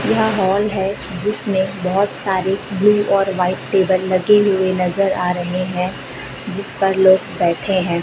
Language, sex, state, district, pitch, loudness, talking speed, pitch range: Hindi, female, Chhattisgarh, Raipur, 190 Hz, -17 LUFS, 155 wpm, 185-200 Hz